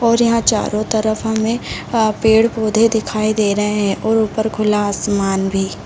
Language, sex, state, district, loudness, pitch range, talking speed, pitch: Hindi, female, Bihar, Sitamarhi, -16 LUFS, 210-225 Hz, 165 wpm, 220 Hz